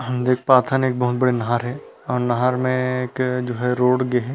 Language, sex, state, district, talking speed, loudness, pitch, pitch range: Chhattisgarhi, male, Chhattisgarh, Rajnandgaon, 235 wpm, -20 LUFS, 125 Hz, 125-130 Hz